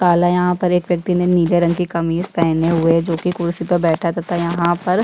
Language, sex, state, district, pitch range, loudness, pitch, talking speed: Hindi, female, Chhattisgarh, Bastar, 170-180 Hz, -17 LUFS, 175 Hz, 300 wpm